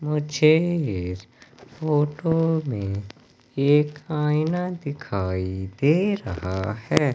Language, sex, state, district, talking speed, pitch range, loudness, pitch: Hindi, male, Madhya Pradesh, Katni, 85 wpm, 100-155 Hz, -24 LUFS, 145 Hz